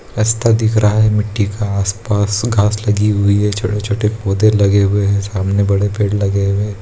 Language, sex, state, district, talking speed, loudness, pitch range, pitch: Hindi, male, Bihar, Muzaffarpur, 195 wpm, -15 LUFS, 100-105 Hz, 105 Hz